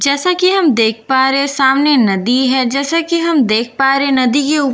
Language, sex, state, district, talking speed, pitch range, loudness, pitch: Hindi, female, Bihar, Katihar, 240 wpm, 255-295 Hz, -13 LUFS, 270 Hz